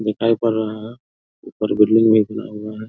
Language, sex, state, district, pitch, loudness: Hindi, male, Bihar, Vaishali, 110 Hz, -18 LUFS